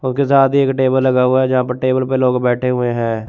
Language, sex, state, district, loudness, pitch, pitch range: Hindi, male, Chandigarh, Chandigarh, -15 LUFS, 130 Hz, 125-130 Hz